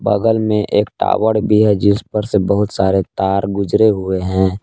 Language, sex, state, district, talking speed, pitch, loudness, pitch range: Hindi, male, Jharkhand, Palamu, 195 wpm, 100 Hz, -15 LUFS, 95-105 Hz